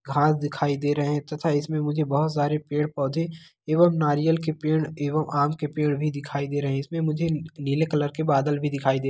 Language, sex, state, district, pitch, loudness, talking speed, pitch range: Hindi, male, Bihar, Begusarai, 150 Hz, -25 LUFS, 225 wpm, 145-155 Hz